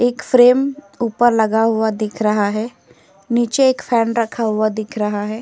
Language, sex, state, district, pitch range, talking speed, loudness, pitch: Hindi, female, Uttar Pradesh, Etah, 215-240 Hz, 175 wpm, -17 LUFS, 225 Hz